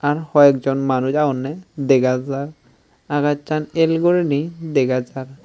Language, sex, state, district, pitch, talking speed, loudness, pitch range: Chakma, male, Tripura, Unakoti, 140 Hz, 120 wpm, -18 LUFS, 135-155 Hz